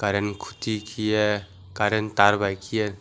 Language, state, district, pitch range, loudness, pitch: Kokborok, Tripura, West Tripura, 100-110 Hz, -24 LUFS, 105 Hz